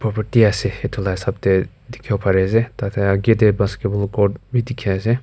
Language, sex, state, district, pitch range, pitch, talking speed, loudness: Nagamese, male, Nagaland, Kohima, 100-115 Hz, 105 Hz, 185 wpm, -19 LUFS